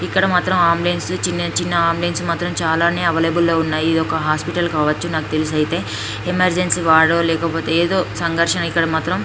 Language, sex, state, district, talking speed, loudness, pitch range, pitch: Telugu, female, Andhra Pradesh, Srikakulam, 160 wpm, -17 LUFS, 160-175 Hz, 170 Hz